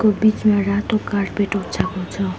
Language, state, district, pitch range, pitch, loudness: Nepali, West Bengal, Darjeeling, 200-215 Hz, 200 Hz, -20 LUFS